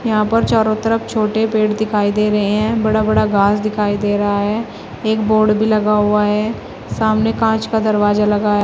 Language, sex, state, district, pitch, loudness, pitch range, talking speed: Hindi, female, Uttar Pradesh, Shamli, 215 Hz, -16 LUFS, 210-220 Hz, 200 wpm